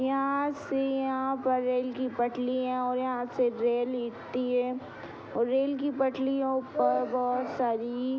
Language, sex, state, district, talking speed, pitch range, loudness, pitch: Hindi, female, Uttar Pradesh, Gorakhpur, 155 wpm, 245-265 Hz, -29 LUFS, 255 Hz